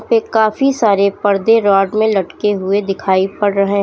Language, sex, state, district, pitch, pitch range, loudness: Hindi, female, Uttar Pradesh, Lalitpur, 200 Hz, 195-220 Hz, -14 LUFS